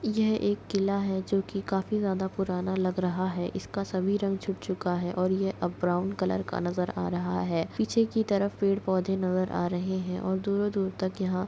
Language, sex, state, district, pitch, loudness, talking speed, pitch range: Hindi, female, Chhattisgarh, Kabirdham, 190 Hz, -29 LUFS, 215 wpm, 180-200 Hz